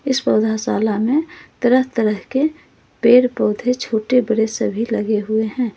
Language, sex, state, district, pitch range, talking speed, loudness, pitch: Hindi, female, Jharkhand, Ranchi, 220-255 Hz, 145 wpm, -18 LUFS, 230 Hz